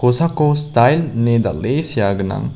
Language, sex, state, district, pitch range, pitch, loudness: Garo, male, Meghalaya, South Garo Hills, 110-150 Hz, 125 Hz, -16 LUFS